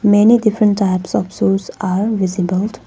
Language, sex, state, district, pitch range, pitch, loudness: English, female, Arunachal Pradesh, Papum Pare, 185-215 Hz, 200 Hz, -15 LUFS